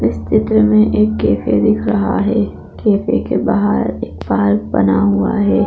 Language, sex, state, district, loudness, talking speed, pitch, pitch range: Hindi, female, Bihar, Muzaffarpur, -15 LUFS, 170 wpm, 100 Hz, 95-105 Hz